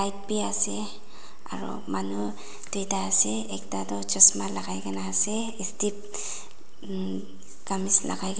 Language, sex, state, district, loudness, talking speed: Nagamese, female, Nagaland, Dimapur, -25 LUFS, 100 wpm